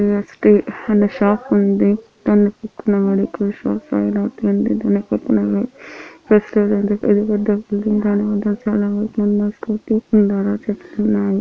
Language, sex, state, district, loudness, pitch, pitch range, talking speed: Telugu, female, Andhra Pradesh, Anantapur, -17 LUFS, 205 Hz, 200-210 Hz, 70 wpm